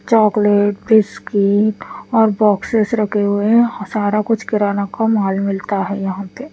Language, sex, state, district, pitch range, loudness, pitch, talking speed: Hindi, female, Punjab, Pathankot, 200-220 Hz, -16 LUFS, 210 Hz, 145 wpm